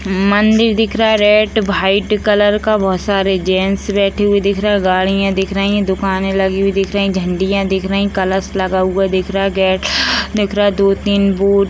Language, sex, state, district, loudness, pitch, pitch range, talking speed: Hindi, female, Bihar, Sitamarhi, -14 LUFS, 195 Hz, 190-205 Hz, 230 wpm